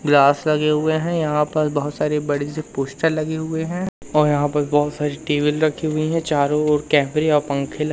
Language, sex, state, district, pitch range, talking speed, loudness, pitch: Hindi, male, Madhya Pradesh, Umaria, 145-155 Hz, 225 wpm, -20 LUFS, 150 Hz